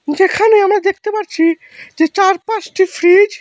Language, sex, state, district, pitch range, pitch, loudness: Bengali, male, Assam, Hailakandi, 345-415 Hz, 385 Hz, -13 LUFS